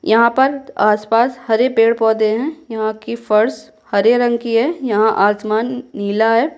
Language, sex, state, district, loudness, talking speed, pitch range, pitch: Hindi, female, Bihar, Kishanganj, -16 LUFS, 155 wpm, 215-245 Hz, 225 Hz